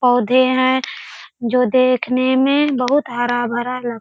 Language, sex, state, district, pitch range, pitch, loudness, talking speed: Hindi, female, Bihar, Purnia, 245-260 Hz, 255 Hz, -17 LUFS, 135 wpm